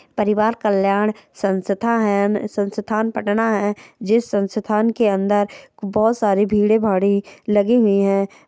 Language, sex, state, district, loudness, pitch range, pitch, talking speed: Hindi, female, Bihar, Jamui, -19 LUFS, 200-220 Hz, 210 Hz, 125 wpm